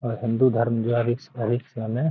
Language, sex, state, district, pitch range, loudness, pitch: Hindi, male, Bihar, Gaya, 115-125 Hz, -24 LUFS, 120 Hz